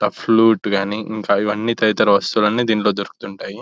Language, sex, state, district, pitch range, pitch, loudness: Telugu, male, Telangana, Nalgonda, 100-110 Hz, 105 Hz, -17 LUFS